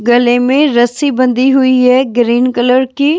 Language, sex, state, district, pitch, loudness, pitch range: Hindi, female, Bihar, West Champaran, 255 Hz, -10 LUFS, 245-265 Hz